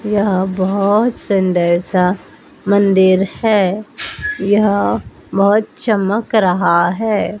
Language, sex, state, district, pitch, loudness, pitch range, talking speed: Hindi, male, Madhya Pradesh, Dhar, 200 Hz, -15 LUFS, 185-210 Hz, 90 wpm